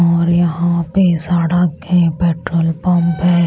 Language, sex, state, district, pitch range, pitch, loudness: Hindi, female, Maharashtra, Washim, 165-175 Hz, 170 Hz, -15 LUFS